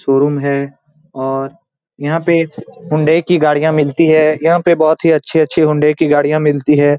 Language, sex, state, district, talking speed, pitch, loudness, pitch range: Hindi, male, Bihar, Saran, 170 wpm, 155 Hz, -13 LUFS, 145-160 Hz